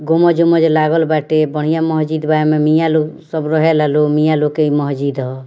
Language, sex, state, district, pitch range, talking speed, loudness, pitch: Bhojpuri, female, Bihar, Muzaffarpur, 150-160 Hz, 250 wpm, -14 LUFS, 155 Hz